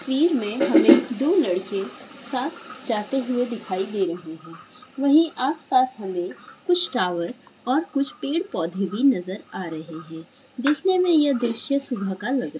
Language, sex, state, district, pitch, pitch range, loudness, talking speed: Hindi, female, Chhattisgarh, Raigarh, 255 Hz, 195-285 Hz, -23 LUFS, 155 wpm